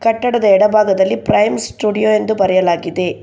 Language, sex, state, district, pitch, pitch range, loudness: Kannada, female, Karnataka, Bangalore, 210 Hz, 190-220 Hz, -14 LUFS